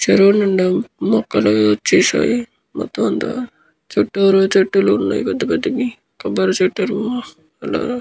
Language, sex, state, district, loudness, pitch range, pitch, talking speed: Telugu, male, Andhra Pradesh, Guntur, -17 LUFS, 185-240 Hz, 195 Hz, 120 wpm